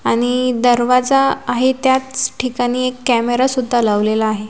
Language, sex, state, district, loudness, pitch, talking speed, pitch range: Marathi, female, Maharashtra, Washim, -16 LUFS, 250 Hz, 135 wpm, 240-260 Hz